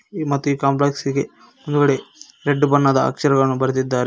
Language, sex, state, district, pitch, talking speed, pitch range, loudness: Kannada, male, Karnataka, Koppal, 140 Hz, 120 wpm, 135-145 Hz, -19 LUFS